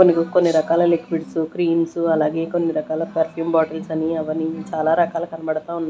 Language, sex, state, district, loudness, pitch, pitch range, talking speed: Telugu, female, Andhra Pradesh, Manyam, -20 LUFS, 165 Hz, 160-170 Hz, 155 wpm